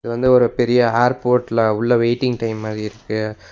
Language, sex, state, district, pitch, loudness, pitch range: Tamil, male, Tamil Nadu, Nilgiris, 115 Hz, -18 LUFS, 110-125 Hz